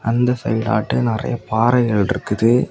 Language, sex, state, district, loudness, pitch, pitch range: Tamil, male, Tamil Nadu, Kanyakumari, -18 LUFS, 115 Hz, 110-125 Hz